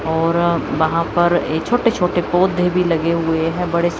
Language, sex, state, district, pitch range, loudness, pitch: Hindi, female, Chandigarh, Chandigarh, 165-180 Hz, -17 LUFS, 170 Hz